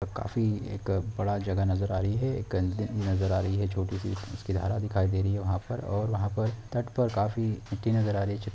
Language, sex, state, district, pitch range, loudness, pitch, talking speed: Hindi, male, West Bengal, Dakshin Dinajpur, 95-110 Hz, -30 LUFS, 100 Hz, 225 wpm